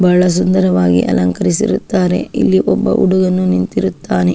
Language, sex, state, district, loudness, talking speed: Kannada, female, Karnataka, Shimoga, -13 LUFS, 95 wpm